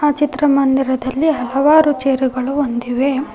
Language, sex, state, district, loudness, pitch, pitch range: Kannada, female, Karnataka, Koppal, -16 LUFS, 270 Hz, 260-290 Hz